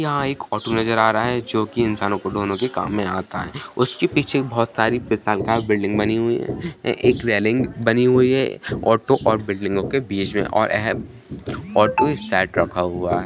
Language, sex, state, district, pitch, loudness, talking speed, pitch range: Hindi, male, Bihar, Jahanabad, 110 Hz, -20 LUFS, 205 wpm, 100-120 Hz